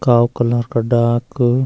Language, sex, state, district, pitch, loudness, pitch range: Garhwali, male, Uttarakhand, Uttarkashi, 120 Hz, -16 LUFS, 120-125 Hz